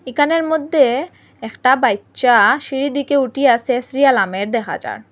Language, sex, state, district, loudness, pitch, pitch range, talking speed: Bengali, female, Assam, Hailakandi, -16 LUFS, 260 Hz, 235-280 Hz, 130 wpm